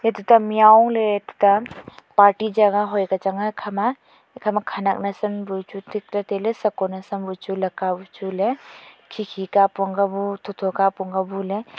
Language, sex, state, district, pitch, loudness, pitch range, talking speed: Wancho, female, Arunachal Pradesh, Longding, 200 Hz, -21 LUFS, 195-210 Hz, 195 wpm